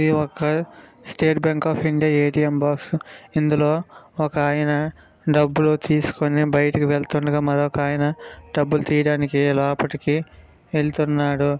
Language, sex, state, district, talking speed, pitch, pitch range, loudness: Telugu, male, Andhra Pradesh, Srikakulam, 100 wpm, 150 Hz, 145-155 Hz, -21 LUFS